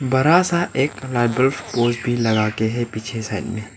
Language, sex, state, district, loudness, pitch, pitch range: Hindi, male, Arunachal Pradesh, Lower Dibang Valley, -20 LUFS, 120 Hz, 110-130 Hz